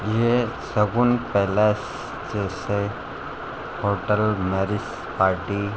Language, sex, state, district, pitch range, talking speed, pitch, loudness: Hindi, male, Uttar Pradesh, Ghazipur, 100-110 Hz, 75 wpm, 105 Hz, -24 LUFS